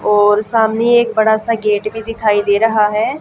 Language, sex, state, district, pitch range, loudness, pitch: Hindi, female, Haryana, Jhajjar, 210-225 Hz, -14 LUFS, 220 Hz